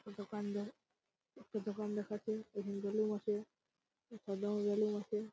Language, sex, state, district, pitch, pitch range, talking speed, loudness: Bengali, male, West Bengal, Purulia, 210 Hz, 205-215 Hz, 80 wpm, -40 LUFS